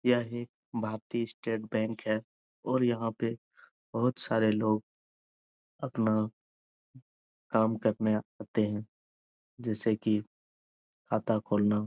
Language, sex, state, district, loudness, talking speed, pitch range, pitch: Hindi, male, Bihar, Jahanabad, -31 LUFS, 105 wpm, 105-115 Hz, 110 Hz